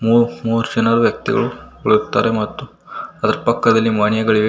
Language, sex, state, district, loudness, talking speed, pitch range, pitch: Kannada, male, Karnataka, Koppal, -17 LUFS, 120 wpm, 110-115 Hz, 115 Hz